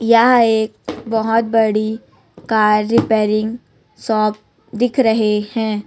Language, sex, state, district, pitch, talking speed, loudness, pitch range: Hindi, female, Chhattisgarh, Raipur, 220 Hz, 100 wpm, -16 LUFS, 215-230 Hz